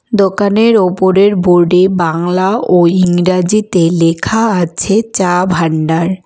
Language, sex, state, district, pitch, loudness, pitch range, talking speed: Bengali, female, West Bengal, Alipurduar, 185 Hz, -11 LUFS, 175-200 Hz, 105 wpm